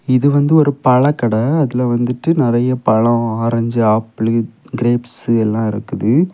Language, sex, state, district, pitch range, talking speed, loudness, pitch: Tamil, male, Tamil Nadu, Kanyakumari, 115-140 Hz, 125 wpm, -15 LUFS, 120 Hz